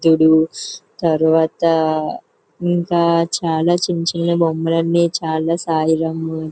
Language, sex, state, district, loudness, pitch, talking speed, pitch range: Telugu, female, Andhra Pradesh, Chittoor, -17 LUFS, 165 Hz, 85 wpm, 160-170 Hz